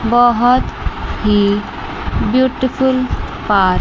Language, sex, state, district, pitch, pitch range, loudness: Hindi, female, Chandigarh, Chandigarh, 245 Hz, 225-260 Hz, -15 LUFS